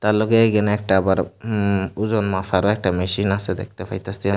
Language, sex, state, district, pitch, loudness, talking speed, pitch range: Bengali, male, Tripura, Unakoti, 100 Hz, -20 LUFS, 180 wpm, 95-105 Hz